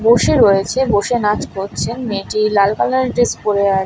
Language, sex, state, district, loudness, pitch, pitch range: Bengali, female, West Bengal, Paschim Medinipur, -15 LUFS, 210 Hz, 200-240 Hz